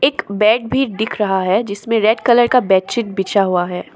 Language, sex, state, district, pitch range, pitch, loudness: Hindi, female, Assam, Sonitpur, 195-240 Hz, 215 Hz, -16 LUFS